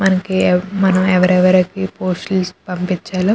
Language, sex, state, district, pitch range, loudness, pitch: Telugu, female, Andhra Pradesh, Krishna, 185-190 Hz, -16 LUFS, 185 Hz